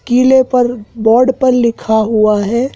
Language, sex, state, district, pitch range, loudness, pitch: Hindi, male, Madhya Pradesh, Dhar, 220-255 Hz, -12 LUFS, 240 Hz